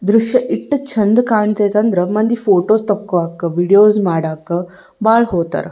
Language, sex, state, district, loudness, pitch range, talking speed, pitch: Kannada, female, Karnataka, Bijapur, -15 LUFS, 180-220 Hz, 125 wpm, 205 Hz